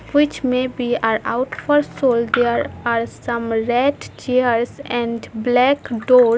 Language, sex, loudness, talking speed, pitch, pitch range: English, female, -19 LUFS, 140 wpm, 245 Hz, 235-260 Hz